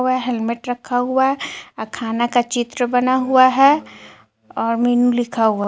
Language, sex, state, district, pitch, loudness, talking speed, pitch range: Hindi, female, Jharkhand, Ranchi, 245 Hz, -18 LUFS, 150 wpm, 240-255 Hz